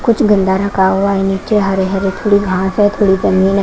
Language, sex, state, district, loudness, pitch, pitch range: Hindi, female, Haryana, Rohtak, -13 LUFS, 195 Hz, 190-205 Hz